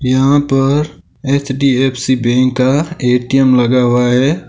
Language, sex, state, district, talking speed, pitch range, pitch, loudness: Hindi, male, Rajasthan, Nagaur, 120 wpm, 125-140 Hz, 130 Hz, -13 LUFS